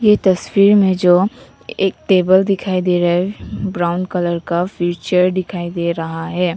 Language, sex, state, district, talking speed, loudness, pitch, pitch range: Hindi, female, Nagaland, Kohima, 165 wpm, -16 LUFS, 180 Hz, 175-195 Hz